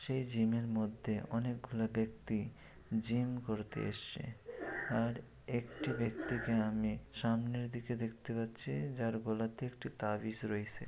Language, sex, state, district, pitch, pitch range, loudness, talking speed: Bengali, male, West Bengal, Malda, 115 Hz, 110-120 Hz, -39 LUFS, 115 wpm